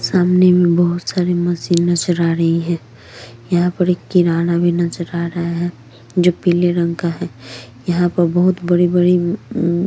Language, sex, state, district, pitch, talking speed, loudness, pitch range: Hindi, female, Chhattisgarh, Korba, 175 Hz, 160 wpm, -16 LUFS, 170-175 Hz